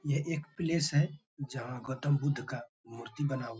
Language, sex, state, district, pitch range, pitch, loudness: Hindi, male, Bihar, Bhagalpur, 125-150 Hz, 145 Hz, -34 LUFS